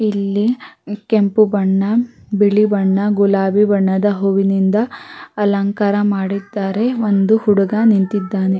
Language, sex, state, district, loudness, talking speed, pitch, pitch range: Kannada, female, Karnataka, Raichur, -16 LUFS, 90 wpm, 205 Hz, 195-210 Hz